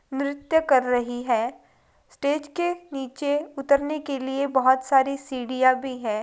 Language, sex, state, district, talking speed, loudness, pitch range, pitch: Hindi, female, Bihar, Gaya, 145 wpm, -24 LUFS, 255-290 Hz, 275 Hz